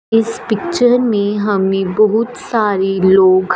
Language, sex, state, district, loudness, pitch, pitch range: Hindi, female, Punjab, Fazilka, -14 LUFS, 210 Hz, 195-225 Hz